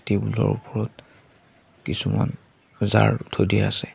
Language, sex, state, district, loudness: Assamese, male, Assam, Sonitpur, -23 LUFS